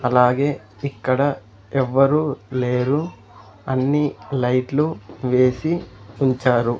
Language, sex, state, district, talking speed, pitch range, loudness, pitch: Telugu, male, Andhra Pradesh, Sri Satya Sai, 70 wpm, 125-140 Hz, -20 LUFS, 130 Hz